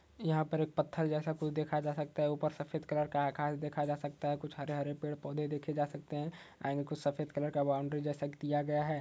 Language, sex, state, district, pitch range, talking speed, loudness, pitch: Hindi, male, Uttar Pradesh, Budaun, 145-150 Hz, 245 wpm, -37 LUFS, 150 Hz